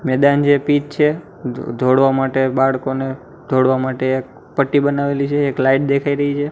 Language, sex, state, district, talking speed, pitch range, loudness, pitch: Gujarati, male, Gujarat, Gandhinagar, 165 wpm, 130-145 Hz, -17 LUFS, 135 Hz